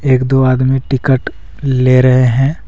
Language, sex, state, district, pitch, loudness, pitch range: Hindi, male, Jharkhand, Deoghar, 130 Hz, -12 LUFS, 130-135 Hz